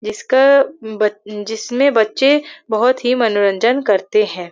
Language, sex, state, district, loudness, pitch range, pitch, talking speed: Hindi, female, Uttar Pradesh, Varanasi, -15 LUFS, 210-260 Hz, 225 Hz, 120 wpm